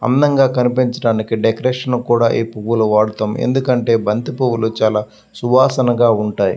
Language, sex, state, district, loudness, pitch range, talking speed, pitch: Telugu, male, Andhra Pradesh, Visakhapatnam, -16 LUFS, 110-125 Hz, 130 wpm, 115 Hz